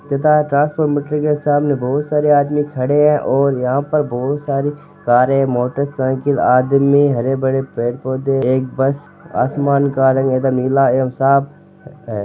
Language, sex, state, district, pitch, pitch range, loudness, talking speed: Marwari, male, Rajasthan, Nagaur, 140 Hz, 130-145 Hz, -16 LUFS, 150 wpm